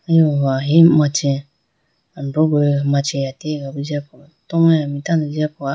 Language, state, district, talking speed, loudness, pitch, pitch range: Idu Mishmi, Arunachal Pradesh, Lower Dibang Valley, 125 wpm, -17 LUFS, 145 Hz, 140-155 Hz